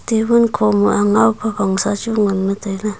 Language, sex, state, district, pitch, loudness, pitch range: Wancho, female, Arunachal Pradesh, Longding, 210 Hz, -16 LUFS, 200-220 Hz